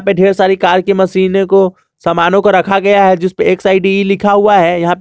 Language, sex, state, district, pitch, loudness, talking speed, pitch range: Hindi, male, Jharkhand, Garhwa, 190 Hz, -10 LUFS, 240 wpm, 185-195 Hz